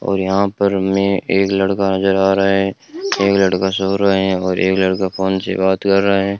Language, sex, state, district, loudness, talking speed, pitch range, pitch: Hindi, male, Rajasthan, Bikaner, -16 LUFS, 225 wpm, 95-100 Hz, 95 Hz